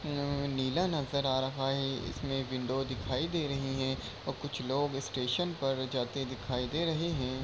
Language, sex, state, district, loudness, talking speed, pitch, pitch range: Hindi, male, Uttar Pradesh, Deoria, -34 LUFS, 185 wpm, 135 Hz, 130-140 Hz